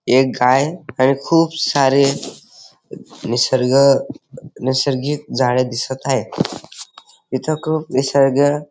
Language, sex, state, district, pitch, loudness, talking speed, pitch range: Marathi, male, Maharashtra, Dhule, 135 Hz, -17 LUFS, 95 wpm, 130-145 Hz